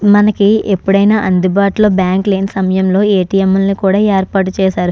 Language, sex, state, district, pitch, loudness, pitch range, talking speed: Telugu, female, Andhra Pradesh, Krishna, 195 Hz, -12 LUFS, 190-205 Hz, 135 wpm